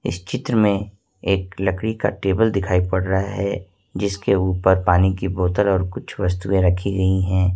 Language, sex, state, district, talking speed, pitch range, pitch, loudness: Hindi, male, Jharkhand, Ranchi, 175 wpm, 95-100 Hz, 95 Hz, -20 LUFS